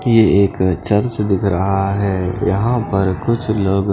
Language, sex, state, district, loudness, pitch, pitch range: Hindi, male, Punjab, Fazilka, -16 LUFS, 100 Hz, 95-110 Hz